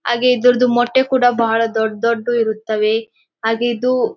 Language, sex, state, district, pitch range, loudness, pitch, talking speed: Kannada, female, Karnataka, Dharwad, 225-250 Hz, -16 LUFS, 240 Hz, 145 wpm